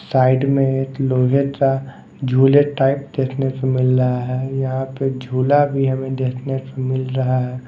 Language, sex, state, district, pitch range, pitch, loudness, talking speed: Hindi, male, Maharashtra, Mumbai Suburban, 130-135 Hz, 130 Hz, -18 LUFS, 170 wpm